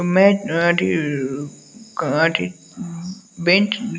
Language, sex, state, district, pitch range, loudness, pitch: Hindi, male, Bihar, West Champaran, 165-200 Hz, -19 LUFS, 175 Hz